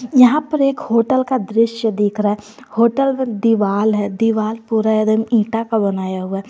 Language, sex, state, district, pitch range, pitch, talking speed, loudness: Hindi, female, Jharkhand, Garhwa, 210-245 Hz, 225 Hz, 195 wpm, -17 LUFS